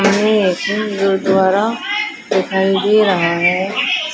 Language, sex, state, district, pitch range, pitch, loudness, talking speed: Hindi, female, Haryana, Rohtak, 190-215 Hz, 195 Hz, -15 LUFS, 85 wpm